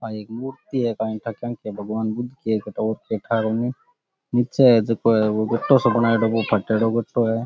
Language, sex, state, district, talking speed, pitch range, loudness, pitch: Rajasthani, male, Rajasthan, Churu, 150 wpm, 110-120 Hz, -21 LUFS, 115 Hz